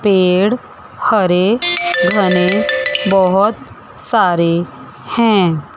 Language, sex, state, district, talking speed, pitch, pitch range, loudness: Hindi, female, Chandigarh, Chandigarh, 60 wpm, 180 Hz, 170-200 Hz, -13 LUFS